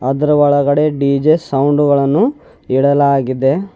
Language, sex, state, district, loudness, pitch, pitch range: Kannada, male, Karnataka, Bidar, -13 LUFS, 145 Hz, 140-150 Hz